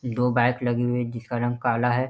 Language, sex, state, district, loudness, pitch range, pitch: Hindi, male, Bihar, Jahanabad, -24 LUFS, 120-125 Hz, 120 Hz